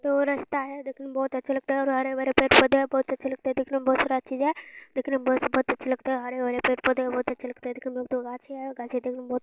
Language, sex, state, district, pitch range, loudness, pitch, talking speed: Hindi, female, Bihar, Araria, 255-270 Hz, -26 LUFS, 265 Hz, 280 wpm